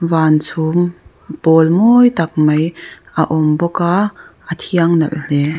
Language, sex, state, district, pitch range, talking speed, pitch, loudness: Mizo, female, Mizoram, Aizawl, 155-175 Hz, 150 wpm, 160 Hz, -14 LUFS